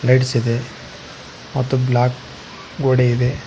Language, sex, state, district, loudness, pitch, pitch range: Kannada, male, Karnataka, Koppal, -18 LUFS, 125 Hz, 125-130 Hz